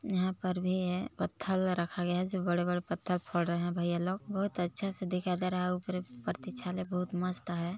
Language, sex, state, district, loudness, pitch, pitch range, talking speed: Hindi, female, Chhattisgarh, Balrampur, -34 LUFS, 180 Hz, 175-185 Hz, 225 wpm